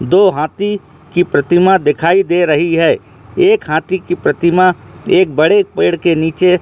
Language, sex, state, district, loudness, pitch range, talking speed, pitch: Hindi, male, Jharkhand, Jamtara, -13 LUFS, 165-190 Hz, 155 wpm, 175 Hz